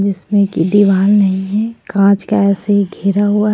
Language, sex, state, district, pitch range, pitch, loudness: Hindi, female, Jharkhand, Ranchi, 195-205 Hz, 200 Hz, -13 LUFS